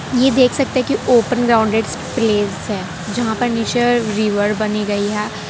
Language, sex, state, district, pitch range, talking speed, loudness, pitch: Hindi, female, Gujarat, Valsad, 210-245 Hz, 155 wpm, -17 LUFS, 220 Hz